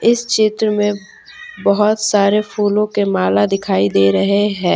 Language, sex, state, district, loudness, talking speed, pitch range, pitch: Hindi, female, Jharkhand, Deoghar, -15 LUFS, 150 wpm, 195-215 Hz, 205 Hz